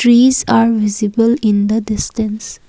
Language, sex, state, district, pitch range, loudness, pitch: English, female, Assam, Kamrup Metropolitan, 215-230 Hz, -14 LUFS, 220 Hz